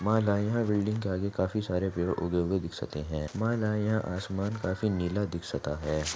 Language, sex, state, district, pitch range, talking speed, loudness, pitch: Hindi, female, Maharashtra, Aurangabad, 85-105 Hz, 205 wpm, -30 LUFS, 95 Hz